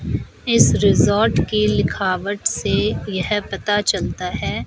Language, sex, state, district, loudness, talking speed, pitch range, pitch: Hindi, female, Himachal Pradesh, Shimla, -19 LUFS, 115 wpm, 190-210 Hz, 200 Hz